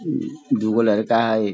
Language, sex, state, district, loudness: Hindi, male, Bihar, Sitamarhi, -20 LUFS